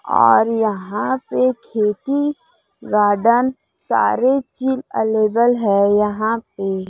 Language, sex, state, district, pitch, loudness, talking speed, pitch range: Hindi, female, Chhattisgarh, Raipur, 230 Hz, -18 LUFS, 105 wpm, 210-260 Hz